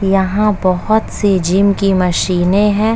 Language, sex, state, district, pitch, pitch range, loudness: Hindi, female, Uttar Pradesh, Etah, 195 Hz, 185-210 Hz, -14 LUFS